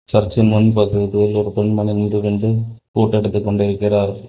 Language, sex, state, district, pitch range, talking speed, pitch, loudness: Tamil, male, Tamil Nadu, Kanyakumari, 105-110 Hz, 140 wpm, 105 Hz, -17 LUFS